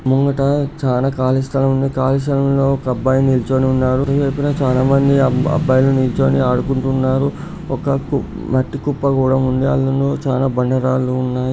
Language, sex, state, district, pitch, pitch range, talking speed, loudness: Telugu, male, Andhra Pradesh, Srikakulam, 135 Hz, 130-140 Hz, 140 wpm, -16 LUFS